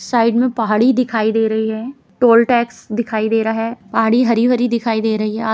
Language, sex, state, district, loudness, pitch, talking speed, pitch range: Hindi, female, Bihar, Jamui, -16 LUFS, 230 Hz, 225 wpm, 220-240 Hz